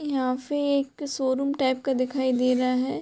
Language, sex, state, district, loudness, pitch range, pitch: Hindi, female, Bihar, Muzaffarpur, -25 LUFS, 255-280 Hz, 265 Hz